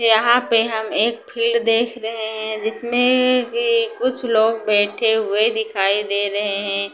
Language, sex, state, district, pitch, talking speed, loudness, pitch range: Hindi, female, Punjab, Pathankot, 225 Hz, 155 wpm, -18 LUFS, 215-235 Hz